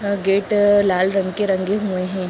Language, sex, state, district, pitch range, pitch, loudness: Hindi, female, Uttar Pradesh, Muzaffarnagar, 185-205 Hz, 195 Hz, -18 LUFS